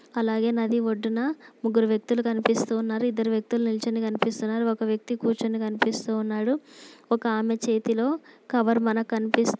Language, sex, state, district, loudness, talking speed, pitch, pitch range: Telugu, female, Andhra Pradesh, Srikakulam, -26 LUFS, 135 wpm, 230 Hz, 225-235 Hz